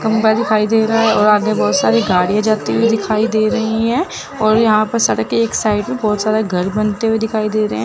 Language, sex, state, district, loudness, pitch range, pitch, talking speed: Hindi, female, Chandigarh, Chandigarh, -15 LUFS, 210-225 Hz, 215 Hz, 235 wpm